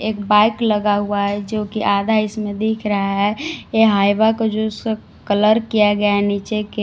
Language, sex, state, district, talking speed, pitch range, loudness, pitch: Hindi, female, Jharkhand, Palamu, 195 wpm, 205-220 Hz, -18 LUFS, 210 Hz